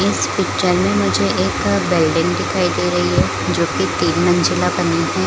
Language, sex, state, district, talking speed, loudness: Hindi, female, Chhattisgarh, Balrampur, 180 wpm, -17 LUFS